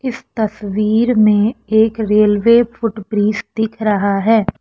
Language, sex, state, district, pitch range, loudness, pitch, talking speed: Hindi, female, Assam, Kamrup Metropolitan, 210-225 Hz, -15 LUFS, 215 Hz, 130 wpm